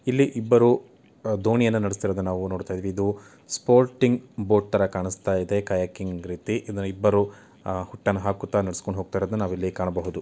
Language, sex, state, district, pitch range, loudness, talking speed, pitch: Kannada, male, Karnataka, Chamarajanagar, 95-110 Hz, -25 LUFS, 140 wpm, 100 Hz